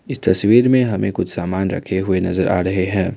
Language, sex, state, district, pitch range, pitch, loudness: Hindi, male, Assam, Kamrup Metropolitan, 90-100 Hz, 95 Hz, -17 LUFS